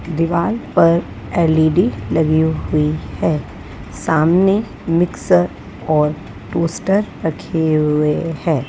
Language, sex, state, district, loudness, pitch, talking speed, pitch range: Hindi, female, Maharashtra, Gondia, -17 LUFS, 160 Hz, 90 wpm, 150-170 Hz